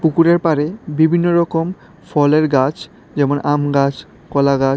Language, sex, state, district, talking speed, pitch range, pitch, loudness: Bengali, male, Tripura, West Tripura, 140 wpm, 140-165 Hz, 150 Hz, -16 LUFS